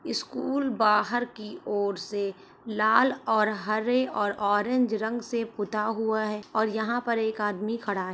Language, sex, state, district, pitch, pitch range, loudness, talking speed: Hindi, female, Uttar Pradesh, Ghazipur, 220 Hz, 210-235 Hz, -27 LUFS, 160 wpm